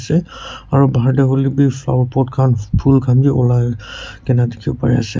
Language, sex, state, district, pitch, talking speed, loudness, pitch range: Nagamese, male, Nagaland, Kohima, 130 Hz, 160 wpm, -15 LUFS, 125-135 Hz